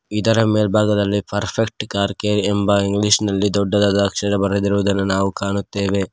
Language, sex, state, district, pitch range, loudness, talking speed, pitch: Kannada, male, Karnataka, Koppal, 100-105 Hz, -18 LUFS, 125 wpm, 100 Hz